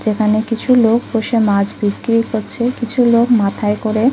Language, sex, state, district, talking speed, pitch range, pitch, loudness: Bengali, female, West Bengal, Kolkata, 160 wpm, 215-235 Hz, 225 Hz, -15 LUFS